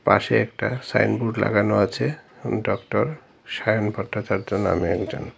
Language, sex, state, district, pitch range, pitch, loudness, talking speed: Bengali, male, Tripura, Dhalai, 100-120 Hz, 105 Hz, -23 LUFS, 110 wpm